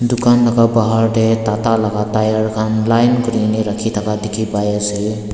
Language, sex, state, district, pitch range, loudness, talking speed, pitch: Nagamese, male, Nagaland, Dimapur, 105-115 Hz, -15 LUFS, 180 wpm, 110 Hz